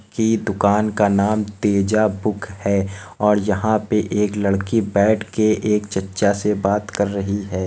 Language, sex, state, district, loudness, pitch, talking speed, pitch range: Hindi, male, Uttar Pradesh, Hamirpur, -19 LUFS, 105 Hz, 165 wpm, 100-105 Hz